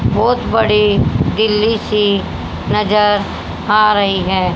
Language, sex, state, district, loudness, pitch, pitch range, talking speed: Hindi, female, Haryana, Jhajjar, -14 LUFS, 210 Hz, 200-210 Hz, 105 wpm